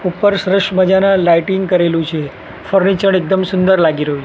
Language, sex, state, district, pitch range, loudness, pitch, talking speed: Gujarati, male, Gujarat, Gandhinagar, 170-195 Hz, -13 LUFS, 185 Hz, 155 wpm